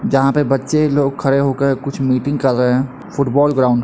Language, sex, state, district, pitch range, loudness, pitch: Hindi, male, Uttar Pradesh, Etah, 130-140 Hz, -16 LUFS, 135 Hz